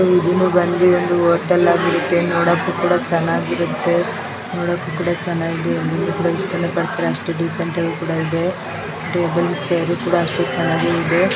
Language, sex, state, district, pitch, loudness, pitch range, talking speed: Kannada, female, Karnataka, Gulbarga, 175 Hz, -18 LUFS, 170-180 Hz, 115 wpm